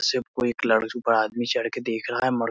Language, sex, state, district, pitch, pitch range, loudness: Hindi, male, Bihar, Muzaffarpur, 120 Hz, 110-120 Hz, -24 LUFS